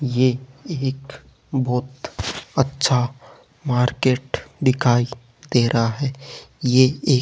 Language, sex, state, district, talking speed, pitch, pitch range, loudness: Hindi, male, Rajasthan, Jaipur, 100 wpm, 130 Hz, 125-135 Hz, -21 LUFS